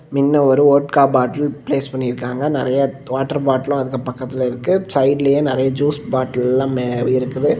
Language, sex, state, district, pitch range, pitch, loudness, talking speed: Tamil, male, Tamil Nadu, Kanyakumari, 130-140 Hz, 135 Hz, -17 LUFS, 150 wpm